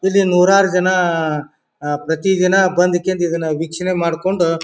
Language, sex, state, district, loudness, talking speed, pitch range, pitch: Kannada, male, Karnataka, Bijapur, -16 LUFS, 115 wpm, 160-185 Hz, 180 Hz